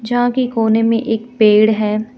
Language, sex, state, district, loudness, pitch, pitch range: Hindi, female, Jharkhand, Deoghar, -14 LUFS, 225 Hz, 215-245 Hz